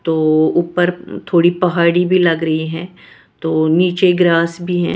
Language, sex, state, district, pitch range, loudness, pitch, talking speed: Hindi, female, Maharashtra, Washim, 165-180 Hz, -15 LUFS, 170 Hz, 155 wpm